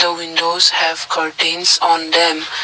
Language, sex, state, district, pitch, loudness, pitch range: English, male, Assam, Kamrup Metropolitan, 170 Hz, -14 LUFS, 165-170 Hz